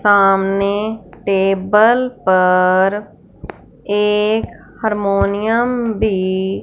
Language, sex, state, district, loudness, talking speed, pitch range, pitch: Hindi, female, Punjab, Fazilka, -15 LUFS, 55 wpm, 195-215 Hz, 205 Hz